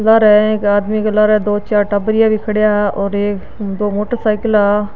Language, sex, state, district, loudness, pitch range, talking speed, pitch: Marwari, female, Rajasthan, Nagaur, -14 LUFS, 205-215 Hz, 195 wpm, 210 Hz